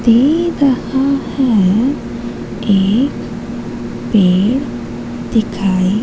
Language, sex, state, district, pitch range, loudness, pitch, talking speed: Hindi, female, Madhya Pradesh, Katni, 185-265 Hz, -15 LUFS, 215 Hz, 60 wpm